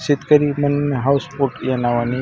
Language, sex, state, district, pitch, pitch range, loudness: Hindi, male, Maharashtra, Washim, 140 Hz, 130-145 Hz, -18 LUFS